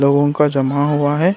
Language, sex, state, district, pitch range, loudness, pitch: Hindi, male, Karnataka, Bangalore, 140-150 Hz, -16 LUFS, 145 Hz